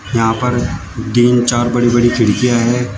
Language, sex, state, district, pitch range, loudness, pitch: Hindi, male, Uttar Pradesh, Shamli, 115-120 Hz, -14 LUFS, 120 Hz